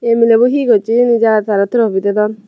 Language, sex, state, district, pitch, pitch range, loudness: Chakma, female, Tripura, Unakoti, 225 Hz, 210-235 Hz, -12 LUFS